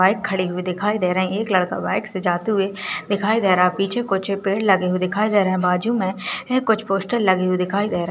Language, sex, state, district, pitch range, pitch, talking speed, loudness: Hindi, female, Uttarakhand, Uttarkashi, 185-210 Hz, 195 Hz, 275 wpm, -20 LUFS